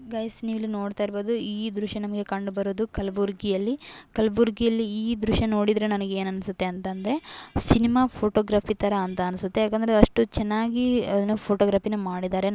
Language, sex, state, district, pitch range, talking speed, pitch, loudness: Kannada, female, Karnataka, Gulbarga, 200-225 Hz, 145 wpm, 210 Hz, -25 LUFS